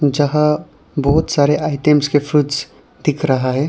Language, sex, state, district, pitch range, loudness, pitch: Hindi, male, Arunachal Pradesh, Lower Dibang Valley, 140-150 Hz, -16 LUFS, 145 Hz